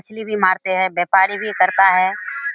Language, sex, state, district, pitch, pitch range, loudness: Hindi, female, Bihar, Kishanganj, 190 Hz, 185-210 Hz, -16 LUFS